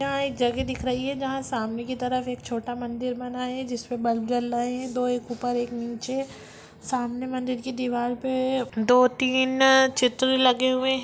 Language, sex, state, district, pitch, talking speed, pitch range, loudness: Hindi, female, Bihar, Lakhisarai, 250 Hz, 190 wpm, 245-260 Hz, -25 LUFS